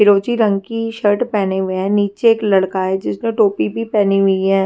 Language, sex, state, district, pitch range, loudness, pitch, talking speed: Hindi, female, Punjab, Fazilka, 195-225 Hz, -16 LUFS, 205 Hz, 205 wpm